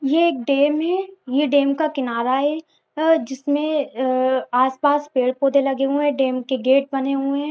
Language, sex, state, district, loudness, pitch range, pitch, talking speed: Hindi, female, Jharkhand, Jamtara, -20 LUFS, 260-295 Hz, 275 Hz, 170 wpm